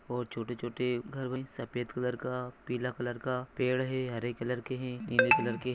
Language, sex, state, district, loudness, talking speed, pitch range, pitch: Hindi, male, Chhattisgarh, Bilaspur, -33 LUFS, 210 wpm, 120-130 Hz, 125 Hz